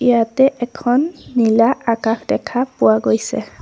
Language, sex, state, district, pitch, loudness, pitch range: Assamese, female, Assam, Sonitpur, 240 Hz, -17 LUFS, 225-260 Hz